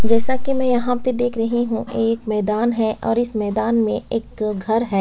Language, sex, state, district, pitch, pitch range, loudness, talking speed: Hindi, female, Chhattisgarh, Sukma, 230 Hz, 220-240 Hz, -20 LUFS, 225 wpm